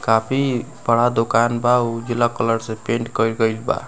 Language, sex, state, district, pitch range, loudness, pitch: Bhojpuri, male, Bihar, Muzaffarpur, 115-120 Hz, -19 LUFS, 115 Hz